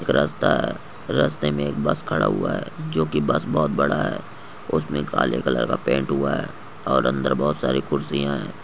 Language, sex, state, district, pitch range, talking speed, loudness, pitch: Hindi, male, Goa, North and South Goa, 70-75 Hz, 200 wpm, -23 LUFS, 70 Hz